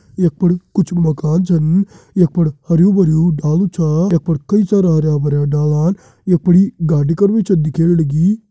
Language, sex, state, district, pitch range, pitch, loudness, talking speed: Hindi, male, Uttarakhand, Tehri Garhwal, 155-185 Hz, 170 Hz, -14 LUFS, 185 wpm